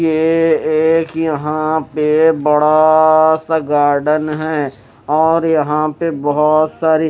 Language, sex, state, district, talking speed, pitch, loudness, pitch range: Hindi, male, Chandigarh, Chandigarh, 125 wpm, 155 Hz, -14 LUFS, 150-160 Hz